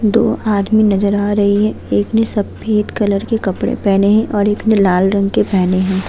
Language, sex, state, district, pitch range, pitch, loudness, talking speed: Hindi, female, Uttar Pradesh, Budaun, 195-215 Hz, 205 Hz, -14 LUFS, 215 wpm